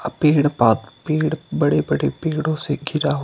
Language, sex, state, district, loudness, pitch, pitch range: Hindi, male, Himachal Pradesh, Shimla, -20 LUFS, 150 Hz, 145-155 Hz